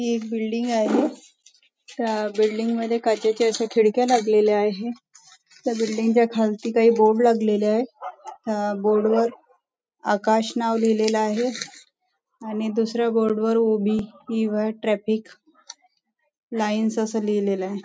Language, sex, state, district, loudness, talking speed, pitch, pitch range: Marathi, female, Maharashtra, Nagpur, -22 LUFS, 135 wpm, 225 Hz, 215-235 Hz